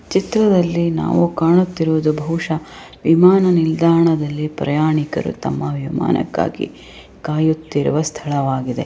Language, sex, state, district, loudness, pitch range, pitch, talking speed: Kannada, female, Karnataka, Raichur, -17 LUFS, 145-170 Hz, 160 Hz, 75 wpm